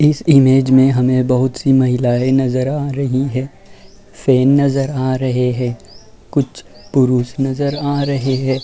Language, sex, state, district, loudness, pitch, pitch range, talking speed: Hindi, male, Uttar Pradesh, Varanasi, -15 LUFS, 130 Hz, 130-140 Hz, 155 wpm